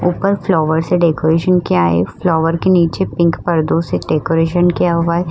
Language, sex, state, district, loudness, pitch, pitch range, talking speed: Hindi, female, Uttar Pradesh, Muzaffarnagar, -15 LUFS, 170 Hz, 160-175 Hz, 180 wpm